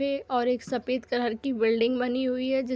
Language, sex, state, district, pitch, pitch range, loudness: Hindi, female, Bihar, Sitamarhi, 250 Hz, 245-260 Hz, -27 LUFS